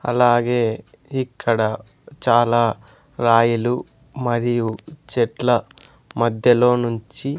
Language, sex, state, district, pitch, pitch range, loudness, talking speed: Telugu, male, Andhra Pradesh, Sri Satya Sai, 120 Hz, 115-125 Hz, -19 LUFS, 75 wpm